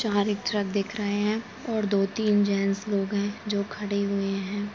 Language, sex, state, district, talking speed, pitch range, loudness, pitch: Hindi, female, Uttarakhand, Tehri Garhwal, 200 wpm, 200-210 Hz, -27 LUFS, 205 Hz